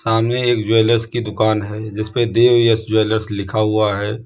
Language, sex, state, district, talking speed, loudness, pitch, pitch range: Hindi, male, Uttar Pradesh, Lalitpur, 170 wpm, -17 LUFS, 110 Hz, 110-115 Hz